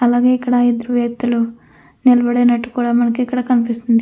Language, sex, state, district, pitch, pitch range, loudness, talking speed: Telugu, female, Andhra Pradesh, Anantapur, 245 Hz, 235-245 Hz, -16 LUFS, 120 wpm